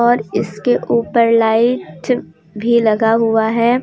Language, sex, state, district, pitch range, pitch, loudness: Hindi, female, Jharkhand, Deoghar, 220-240 Hz, 230 Hz, -15 LUFS